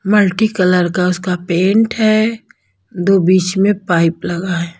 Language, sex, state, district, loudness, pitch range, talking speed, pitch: Hindi, female, Bihar, Patna, -14 LUFS, 175-205 Hz, 135 wpm, 185 Hz